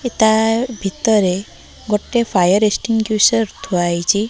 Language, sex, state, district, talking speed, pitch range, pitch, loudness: Odia, female, Odisha, Malkangiri, 110 wpm, 195-225 Hz, 215 Hz, -16 LUFS